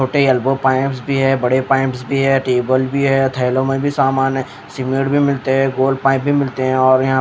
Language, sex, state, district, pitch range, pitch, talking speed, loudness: Hindi, female, Odisha, Khordha, 130-135 Hz, 135 Hz, 235 wpm, -16 LUFS